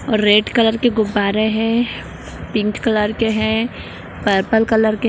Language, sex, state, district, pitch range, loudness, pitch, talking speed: Hindi, female, Bihar, Purnia, 210-225 Hz, -17 LUFS, 220 Hz, 165 wpm